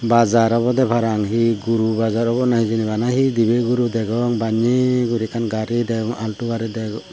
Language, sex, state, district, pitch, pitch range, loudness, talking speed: Chakma, male, Tripura, Unakoti, 115 Hz, 110-120 Hz, -19 LUFS, 185 wpm